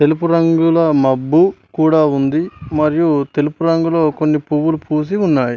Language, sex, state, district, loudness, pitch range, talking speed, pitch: Telugu, male, Telangana, Mahabubabad, -15 LUFS, 150-165 Hz, 130 wpm, 155 Hz